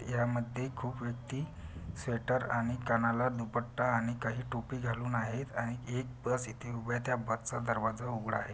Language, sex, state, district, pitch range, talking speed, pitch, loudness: Marathi, male, Maharashtra, Pune, 115-125 Hz, 160 wpm, 120 Hz, -35 LUFS